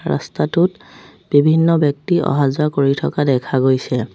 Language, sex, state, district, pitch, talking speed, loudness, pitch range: Assamese, female, Assam, Sonitpur, 145 Hz, 130 wpm, -16 LUFS, 135-160 Hz